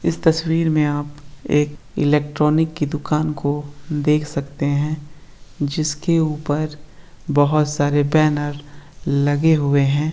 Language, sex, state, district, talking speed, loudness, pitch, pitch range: Hindi, male, Bihar, East Champaran, 120 wpm, -19 LUFS, 150 Hz, 145-155 Hz